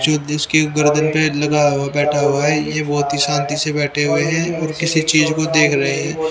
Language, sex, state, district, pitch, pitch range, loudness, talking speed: Hindi, male, Haryana, Rohtak, 150 Hz, 145-155 Hz, -16 LUFS, 230 wpm